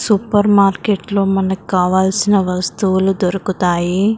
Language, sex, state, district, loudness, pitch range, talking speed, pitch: Telugu, female, Telangana, Karimnagar, -15 LUFS, 185-205 Hz, 100 wpm, 195 Hz